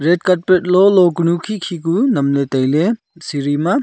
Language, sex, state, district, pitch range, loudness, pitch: Wancho, male, Arunachal Pradesh, Longding, 150-190 Hz, -15 LUFS, 175 Hz